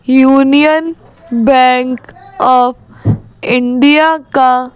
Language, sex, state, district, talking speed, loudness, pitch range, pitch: Hindi, female, Madhya Pradesh, Bhopal, 65 wpm, -10 LUFS, 250-285 Hz, 255 Hz